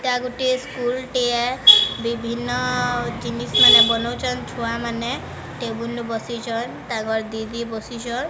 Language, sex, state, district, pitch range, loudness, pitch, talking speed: Odia, female, Odisha, Sambalpur, 230-250 Hz, -19 LUFS, 235 Hz, 45 wpm